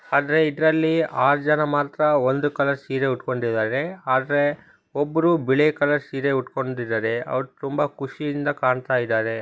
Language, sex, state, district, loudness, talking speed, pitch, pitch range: Kannada, male, Karnataka, Bellary, -22 LUFS, 125 wpm, 140 Hz, 130-150 Hz